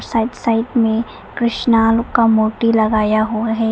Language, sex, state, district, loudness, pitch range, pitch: Hindi, female, Arunachal Pradesh, Papum Pare, -16 LUFS, 220-230 Hz, 225 Hz